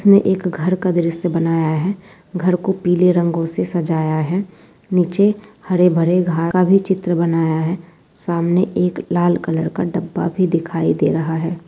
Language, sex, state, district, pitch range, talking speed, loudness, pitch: Hindi, female, West Bengal, Purulia, 165-185 Hz, 175 wpm, -18 LUFS, 175 Hz